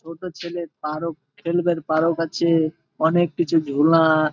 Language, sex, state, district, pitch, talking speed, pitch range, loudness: Bengali, male, West Bengal, Malda, 165 Hz, 125 wpm, 155-170 Hz, -21 LUFS